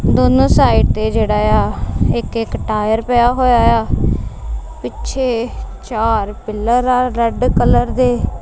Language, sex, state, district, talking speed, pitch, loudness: Punjabi, female, Punjab, Kapurthala, 120 wpm, 225 Hz, -15 LUFS